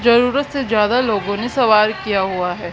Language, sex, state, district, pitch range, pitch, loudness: Hindi, female, Haryana, Charkhi Dadri, 200-245 Hz, 215 Hz, -17 LUFS